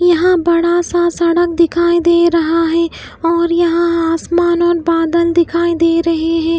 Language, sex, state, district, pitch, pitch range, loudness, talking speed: Hindi, female, Bihar, West Champaran, 340 Hz, 335-345 Hz, -13 LUFS, 155 wpm